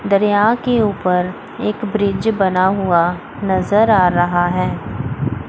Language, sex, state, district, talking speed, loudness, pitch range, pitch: Hindi, female, Chandigarh, Chandigarh, 120 wpm, -16 LUFS, 175-210 Hz, 190 Hz